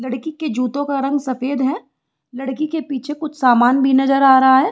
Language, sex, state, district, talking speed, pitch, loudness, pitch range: Hindi, female, Bihar, Saran, 215 wpm, 270 Hz, -17 LUFS, 260-285 Hz